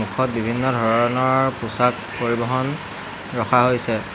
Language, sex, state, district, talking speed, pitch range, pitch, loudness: Assamese, male, Assam, Hailakandi, 100 wpm, 115-130 Hz, 125 Hz, -20 LUFS